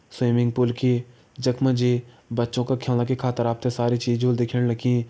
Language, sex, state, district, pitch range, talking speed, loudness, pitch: Hindi, male, Uttarakhand, Tehri Garhwal, 120-125 Hz, 210 wpm, -23 LUFS, 125 Hz